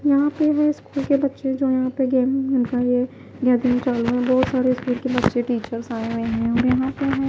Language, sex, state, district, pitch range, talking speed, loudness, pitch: Hindi, female, Punjab, Pathankot, 245-270 Hz, 205 wpm, -21 LUFS, 255 Hz